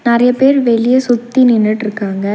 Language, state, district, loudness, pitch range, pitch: Tamil, Tamil Nadu, Nilgiris, -12 LUFS, 215-250 Hz, 235 Hz